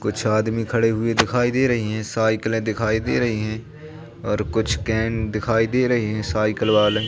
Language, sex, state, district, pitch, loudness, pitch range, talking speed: Hindi, male, Madhya Pradesh, Katni, 110 Hz, -21 LUFS, 110-115 Hz, 185 wpm